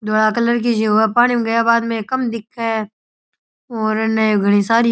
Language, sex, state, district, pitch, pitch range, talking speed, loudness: Rajasthani, male, Rajasthan, Churu, 225 Hz, 215-235 Hz, 135 wpm, -17 LUFS